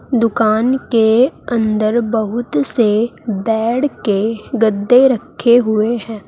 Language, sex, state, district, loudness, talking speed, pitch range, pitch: Hindi, female, Uttar Pradesh, Saharanpur, -15 LUFS, 105 wpm, 220-245 Hz, 230 Hz